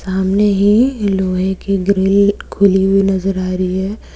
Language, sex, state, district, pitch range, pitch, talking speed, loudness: Hindi, female, Jharkhand, Deoghar, 190-200 Hz, 195 Hz, 160 wpm, -14 LUFS